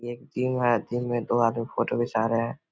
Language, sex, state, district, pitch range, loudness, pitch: Hindi, male, Bihar, Vaishali, 115-120 Hz, -26 LUFS, 120 Hz